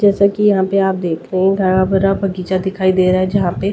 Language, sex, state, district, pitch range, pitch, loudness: Hindi, female, Delhi, New Delhi, 185-195 Hz, 190 Hz, -15 LUFS